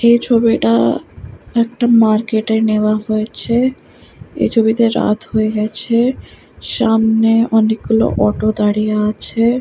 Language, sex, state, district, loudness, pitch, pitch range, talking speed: Bengali, female, West Bengal, Kolkata, -15 LUFS, 220 Hz, 215-230 Hz, 100 wpm